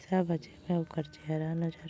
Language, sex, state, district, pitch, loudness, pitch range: Bhojpuri, female, Uttar Pradesh, Gorakhpur, 165 Hz, -34 LUFS, 155-170 Hz